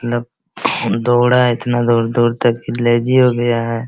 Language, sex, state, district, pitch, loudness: Hindi, male, Bihar, Araria, 120 Hz, -15 LUFS